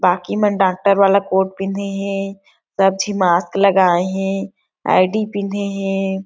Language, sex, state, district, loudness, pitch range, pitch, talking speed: Chhattisgarhi, female, Chhattisgarh, Sarguja, -17 LUFS, 190-200 Hz, 195 Hz, 155 wpm